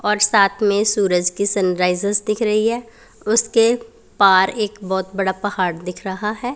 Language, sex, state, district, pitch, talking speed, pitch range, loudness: Hindi, female, Punjab, Pathankot, 205 Hz, 165 wpm, 190-220 Hz, -18 LUFS